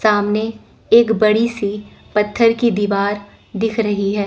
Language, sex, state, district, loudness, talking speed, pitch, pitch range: Hindi, female, Chandigarh, Chandigarh, -17 LUFS, 140 wpm, 210 Hz, 205-225 Hz